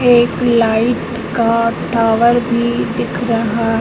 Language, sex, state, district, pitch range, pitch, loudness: Hindi, female, Madhya Pradesh, Katni, 230-240 Hz, 230 Hz, -15 LUFS